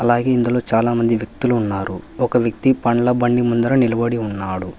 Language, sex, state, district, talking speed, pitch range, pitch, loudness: Telugu, male, Telangana, Hyderabad, 165 wpm, 110-120 Hz, 120 Hz, -18 LUFS